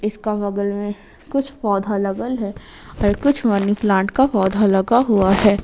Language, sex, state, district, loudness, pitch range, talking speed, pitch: Hindi, female, Jharkhand, Ranchi, -19 LUFS, 200-225 Hz, 170 wpm, 205 Hz